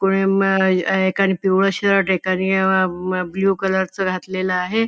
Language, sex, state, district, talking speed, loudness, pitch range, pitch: Marathi, female, Maharashtra, Nagpur, 170 wpm, -18 LUFS, 185-195 Hz, 190 Hz